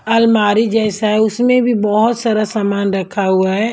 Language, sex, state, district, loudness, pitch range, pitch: Hindi, female, Maharashtra, Mumbai Suburban, -14 LUFS, 205-225 Hz, 215 Hz